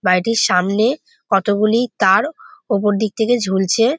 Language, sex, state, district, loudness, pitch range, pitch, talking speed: Bengali, female, West Bengal, Jhargram, -17 LUFS, 195-240 Hz, 220 Hz, 120 wpm